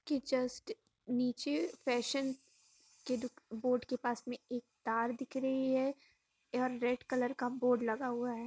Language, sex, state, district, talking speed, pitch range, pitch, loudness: Hindi, female, Bihar, Gaya, 165 wpm, 245-265 Hz, 250 Hz, -37 LUFS